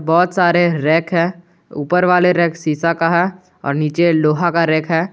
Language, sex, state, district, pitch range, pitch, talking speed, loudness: Hindi, male, Jharkhand, Garhwa, 160-175 Hz, 170 Hz, 185 wpm, -15 LUFS